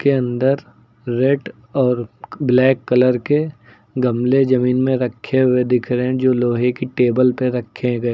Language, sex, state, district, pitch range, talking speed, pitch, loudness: Hindi, male, Uttar Pradesh, Lucknow, 125-130 Hz, 155 wpm, 125 Hz, -18 LUFS